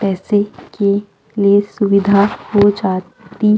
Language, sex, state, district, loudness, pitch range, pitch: Hindi, female, Chhattisgarh, Jashpur, -15 LUFS, 195-205 Hz, 200 Hz